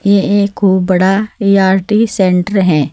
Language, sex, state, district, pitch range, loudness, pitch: Hindi, female, Uttar Pradesh, Saharanpur, 185-205 Hz, -12 LUFS, 195 Hz